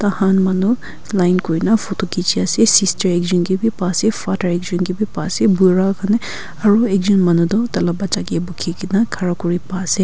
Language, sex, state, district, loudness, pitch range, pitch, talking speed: Nagamese, female, Nagaland, Kohima, -17 LUFS, 180-205 Hz, 190 Hz, 220 wpm